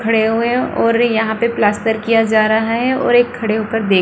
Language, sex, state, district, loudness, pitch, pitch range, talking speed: Hindi, female, Bihar, Supaul, -15 LUFS, 225 Hz, 220-235 Hz, 255 wpm